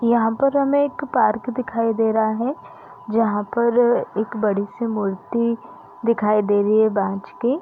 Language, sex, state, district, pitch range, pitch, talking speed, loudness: Hindi, female, Chhattisgarh, Bilaspur, 210-240 Hz, 225 Hz, 165 wpm, -20 LUFS